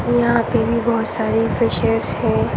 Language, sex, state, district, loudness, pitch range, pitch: Hindi, female, Bihar, Samastipur, -18 LUFS, 225-235 Hz, 230 Hz